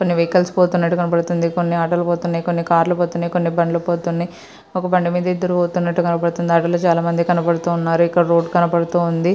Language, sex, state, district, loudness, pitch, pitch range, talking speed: Telugu, female, Andhra Pradesh, Srikakulam, -18 LUFS, 170 Hz, 170-175 Hz, 140 wpm